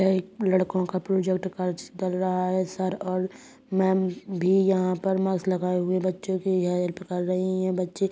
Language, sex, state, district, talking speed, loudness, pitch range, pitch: Hindi, female, Uttar Pradesh, Hamirpur, 200 wpm, -26 LUFS, 185-190 Hz, 185 Hz